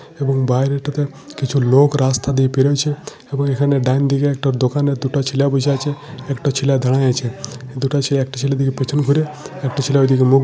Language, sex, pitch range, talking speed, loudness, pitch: Bengali, male, 135-140 Hz, 170 wpm, -17 LUFS, 135 Hz